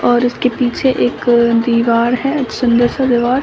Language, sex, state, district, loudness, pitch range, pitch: Hindi, female, Bihar, Samastipur, -14 LUFS, 235-255 Hz, 240 Hz